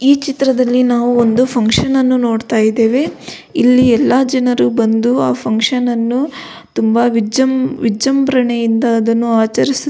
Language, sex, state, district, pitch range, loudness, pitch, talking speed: Kannada, female, Karnataka, Belgaum, 230-260 Hz, -13 LUFS, 245 Hz, 125 wpm